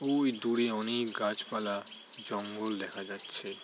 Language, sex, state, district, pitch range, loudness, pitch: Bengali, male, West Bengal, Jalpaiguri, 100-120 Hz, -34 LUFS, 110 Hz